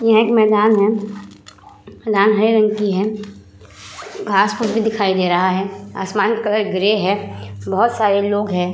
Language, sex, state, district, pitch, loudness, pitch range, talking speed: Hindi, female, Uttar Pradesh, Muzaffarnagar, 205 Hz, -17 LUFS, 190-215 Hz, 165 wpm